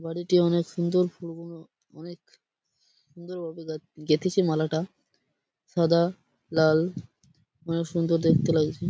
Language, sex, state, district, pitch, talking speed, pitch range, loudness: Bengali, male, West Bengal, Purulia, 165 Hz, 100 wpm, 160-175 Hz, -26 LUFS